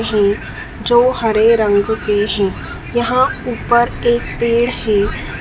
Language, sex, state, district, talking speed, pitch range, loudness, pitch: Hindi, female, Madhya Pradesh, Dhar, 120 wpm, 210-240 Hz, -15 LUFS, 225 Hz